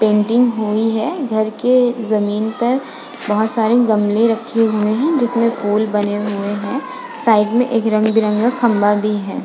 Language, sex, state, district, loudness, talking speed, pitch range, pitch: Hindi, female, Uttar Pradesh, Muzaffarnagar, -16 LUFS, 160 wpm, 210-240 Hz, 220 Hz